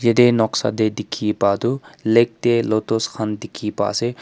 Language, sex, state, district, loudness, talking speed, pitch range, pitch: Nagamese, male, Nagaland, Kohima, -19 LUFS, 185 wpm, 105-120 Hz, 110 Hz